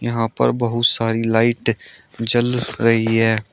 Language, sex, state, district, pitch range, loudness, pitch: Hindi, male, Uttar Pradesh, Shamli, 115-120 Hz, -18 LUFS, 115 Hz